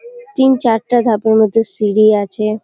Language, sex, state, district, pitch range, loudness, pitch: Bengali, female, West Bengal, Malda, 215-245 Hz, -13 LUFS, 220 Hz